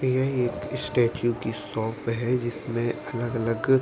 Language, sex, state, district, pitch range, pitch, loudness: Hindi, male, Uttar Pradesh, Varanasi, 115-125 Hz, 120 Hz, -27 LUFS